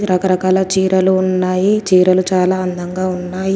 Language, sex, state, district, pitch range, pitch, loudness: Telugu, female, Telangana, Komaram Bheem, 185-190 Hz, 185 Hz, -15 LUFS